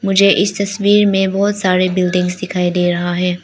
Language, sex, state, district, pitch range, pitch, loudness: Hindi, female, Arunachal Pradesh, Lower Dibang Valley, 180-200 Hz, 185 Hz, -15 LUFS